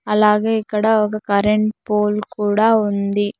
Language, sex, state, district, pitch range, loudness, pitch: Telugu, female, Andhra Pradesh, Sri Satya Sai, 205-215 Hz, -17 LUFS, 210 Hz